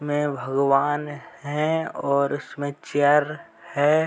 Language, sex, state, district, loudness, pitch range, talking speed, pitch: Hindi, male, Uttar Pradesh, Gorakhpur, -23 LUFS, 140-150 Hz, 105 wpm, 145 Hz